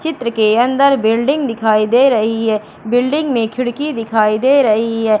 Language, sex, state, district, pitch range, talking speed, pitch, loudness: Hindi, female, Madhya Pradesh, Katni, 220-270 Hz, 170 wpm, 230 Hz, -14 LUFS